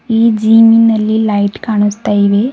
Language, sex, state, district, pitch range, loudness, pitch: Kannada, female, Karnataka, Bidar, 205-225 Hz, -10 LUFS, 220 Hz